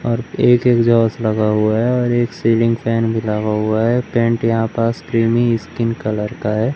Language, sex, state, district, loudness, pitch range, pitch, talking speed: Hindi, male, Madhya Pradesh, Umaria, -16 LUFS, 110-120 Hz, 115 Hz, 195 wpm